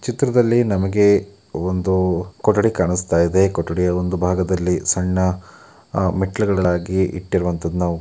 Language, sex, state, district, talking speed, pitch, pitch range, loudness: Kannada, male, Karnataka, Mysore, 105 wpm, 95 Hz, 90-100 Hz, -19 LUFS